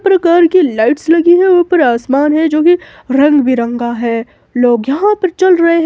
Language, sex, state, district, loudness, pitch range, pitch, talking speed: Hindi, female, Himachal Pradesh, Shimla, -11 LUFS, 250-350 Hz, 315 Hz, 195 wpm